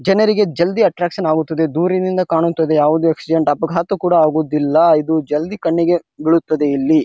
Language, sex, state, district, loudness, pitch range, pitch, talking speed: Kannada, male, Karnataka, Bijapur, -16 LUFS, 155-180 Hz, 165 Hz, 135 wpm